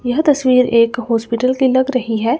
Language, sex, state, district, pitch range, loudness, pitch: Hindi, female, Chandigarh, Chandigarh, 230-260 Hz, -15 LUFS, 250 Hz